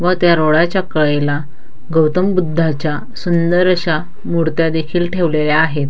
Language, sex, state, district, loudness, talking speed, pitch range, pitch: Marathi, female, Maharashtra, Dhule, -15 LUFS, 120 wpm, 155-175 Hz, 160 Hz